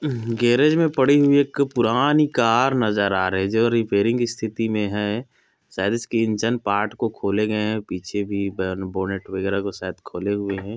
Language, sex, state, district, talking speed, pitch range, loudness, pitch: Hindi, male, Chhattisgarh, Korba, 190 wpm, 100-120 Hz, -21 LUFS, 110 Hz